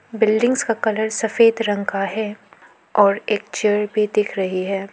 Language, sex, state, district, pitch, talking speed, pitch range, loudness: Hindi, female, Arunachal Pradesh, Lower Dibang Valley, 210 Hz, 170 wpm, 205-220 Hz, -19 LUFS